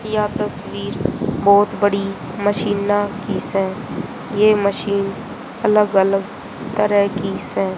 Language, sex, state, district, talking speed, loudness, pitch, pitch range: Hindi, female, Haryana, Jhajjar, 110 wpm, -18 LUFS, 205 Hz, 195-210 Hz